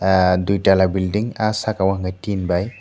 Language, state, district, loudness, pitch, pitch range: Kokborok, Tripura, Dhalai, -19 LUFS, 95 Hz, 95-105 Hz